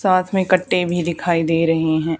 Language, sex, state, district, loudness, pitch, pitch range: Hindi, female, Haryana, Charkhi Dadri, -18 LUFS, 170 Hz, 165-185 Hz